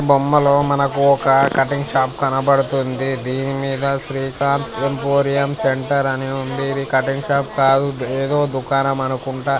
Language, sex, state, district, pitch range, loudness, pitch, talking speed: Telugu, male, Andhra Pradesh, Guntur, 135-140 Hz, -18 LUFS, 135 Hz, 130 wpm